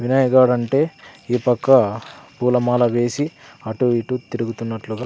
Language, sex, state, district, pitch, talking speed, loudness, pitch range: Telugu, male, Andhra Pradesh, Sri Satya Sai, 125 Hz, 120 wpm, -19 LUFS, 115-130 Hz